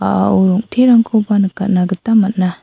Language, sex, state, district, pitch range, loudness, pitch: Garo, female, Meghalaya, South Garo Hills, 185-220 Hz, -13 LUFS, 195 Hz